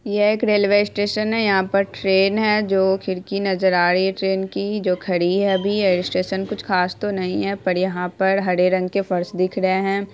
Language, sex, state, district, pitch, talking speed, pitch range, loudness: Hindi, female, Bihar, Saharsa, 190 Hz, 225 wpm, 185-200 Hz, -20 LUFS